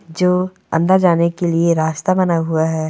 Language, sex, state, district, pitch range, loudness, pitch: Hindi, male, Chhattisgarh, Bastar, 165-180 Hz, -16 LUFS, 170 Hz